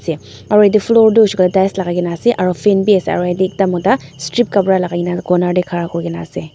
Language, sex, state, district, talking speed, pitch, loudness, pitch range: Nagamese, female, Nagaland, Dimapur, 255 wpm, 185 Hz, -14 LUFS, 175-205 Hz